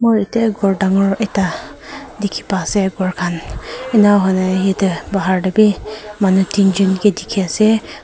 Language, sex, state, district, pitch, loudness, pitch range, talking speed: Nagamese, female, Nagaland, Kohima, 195 Hz, -16 LUFS, 190-210 Hz, 150 wpm